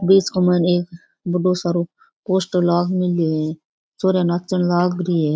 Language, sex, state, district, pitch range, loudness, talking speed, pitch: Rajasthani, female, Rajasthan, Churu, 175-185 Hz, -19 LUFS, 170 wpm, 180 Hz